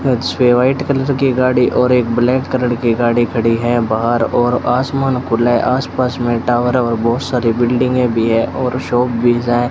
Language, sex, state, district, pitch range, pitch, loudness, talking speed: Hindi, male, Rajasthan, Bikaner, 120-125 Hz, 120 Hz, -15 LUFS, 190 wpm